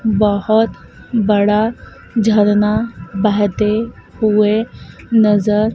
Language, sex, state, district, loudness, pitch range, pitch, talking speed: Hindi, female, Madhya Pradesh, Dhar, -15 LUFS, 210-220 Hz, 210 Hz, 65 wpm